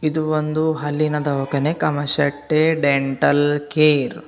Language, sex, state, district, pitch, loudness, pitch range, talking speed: Kannada, male, Karnataka, Bidar, 150 Hz, -19 LUFS, 145-155 Hz, 110 wpm